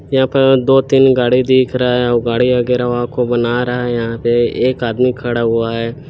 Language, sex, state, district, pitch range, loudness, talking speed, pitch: Hindi, male, Chhattisgarh, Bilaspur, 120-130 Hz, -14 LUFS, 205 wpm, 125 Hz